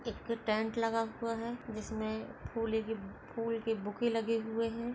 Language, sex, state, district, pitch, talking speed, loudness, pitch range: Hindi, female, Goa, North and South Goa, 225 Hz, 170 wpm, -36 LUFS, 220-230 Hz